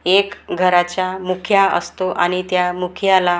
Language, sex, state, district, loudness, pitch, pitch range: Marathi, female, Maharashtra, Gondia, -17 LUFS, 185 Hz, 180-190 Hz